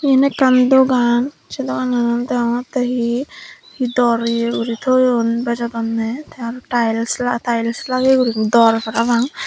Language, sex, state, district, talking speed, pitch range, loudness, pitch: Chakma, female, Tripura, Dhalai, 125 wpm, 235-255 Hz, -17 LUFS, 240 Hz